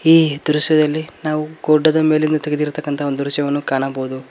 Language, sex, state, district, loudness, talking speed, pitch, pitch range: Kannada, male, Karnataka, Koppal, -17 LUFS, 125 wpm, 150 Hz, 145-155 Hz